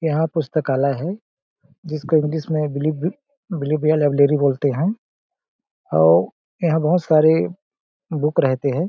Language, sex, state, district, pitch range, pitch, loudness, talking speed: Hindi, male, Chhattisgarh, Balrampur, 140-165 Hz, 155 Hz, -19 LUFS, 120 wpm